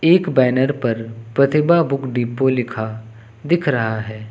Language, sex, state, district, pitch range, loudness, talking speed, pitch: Hindi, male, Uttar Pradesh, Lucknow, 115-140 Hz, -18 LUFS, 140 wpm, 125 Hz